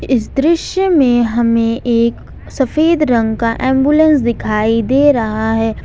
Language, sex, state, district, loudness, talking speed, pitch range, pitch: Hindi, female, Jharkhand, Ranchi, -13 LUFS, 135 wpm, 230-290 Hz, 240 Hz